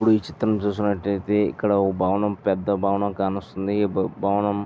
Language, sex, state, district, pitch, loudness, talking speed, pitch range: Telugu, male, Andhra Pradesh, Visakhapatnam, 100 Hz, -23 LUFS, 165 wpm, 100-105 Hz